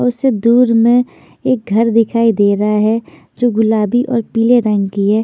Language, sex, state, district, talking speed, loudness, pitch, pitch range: Hindi, female, Chandigarh, Chandigarh, 185 wpm, -13 LUFS, 230 Hz, 215-245 Hz